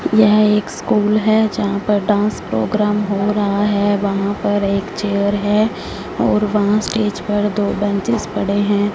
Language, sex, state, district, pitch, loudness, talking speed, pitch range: Hindi, female, Punjab, Fazilka, 205 Hz, -17 LUFS, 160 wpm, 200-210 Hz